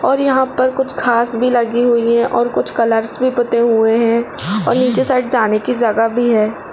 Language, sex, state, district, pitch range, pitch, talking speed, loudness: Hindi, female, Uttar Pradesh, Jalaun, 230-250 Hz, 240 Hz, 215 wpm, -15 LUFS